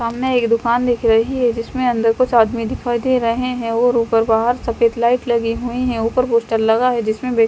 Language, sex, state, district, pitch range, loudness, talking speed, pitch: Hindi, female, Chandigarh, Chandigarh, 230-245 Hz, -17 LUFS, 215 wpm, 235 Hz